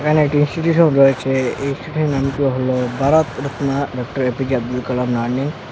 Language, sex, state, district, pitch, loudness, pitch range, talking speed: Bengali, male, Assam, Hailakandi, 135 Hz, -18 LUFS, 125-145 Hz, 155 wpm